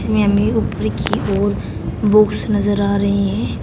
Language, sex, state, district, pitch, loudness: Hindi, female, Uttar Pradesh, Shamli, 200 Hz, -17 LUFS